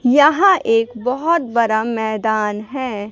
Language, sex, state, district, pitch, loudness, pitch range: Hindi, female, Bihar, West Champaran, 235 Hz, -17 LUFS, 220-275 Hz